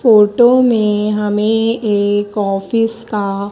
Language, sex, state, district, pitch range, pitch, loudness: Hindi, female, Madhya Pradesh, Dhar, 205-225 Hz, 210 Hz, -14 LUFS